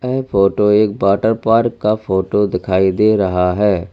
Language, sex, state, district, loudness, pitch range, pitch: Hindi, male, Uttar Pradesh, Lalitpur, -15 LUFS, 95-110 Hz, 105 Hz